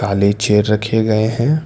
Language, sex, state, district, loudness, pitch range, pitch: Hindi, male, Karnataka, Bangalore, -15 LUFS, 105-115 Hz, 110 Hz